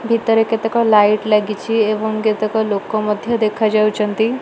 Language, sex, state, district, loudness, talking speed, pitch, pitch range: Odia, female, Odisha, Malkangiri, -16 LUFS, 135 wpm, 215 Hz, 210-225 Hz